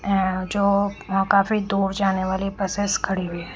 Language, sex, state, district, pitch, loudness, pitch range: Hindi, female, Haryana, Rohtak, 195 Hz, -22 LUFS, 190-200 Hz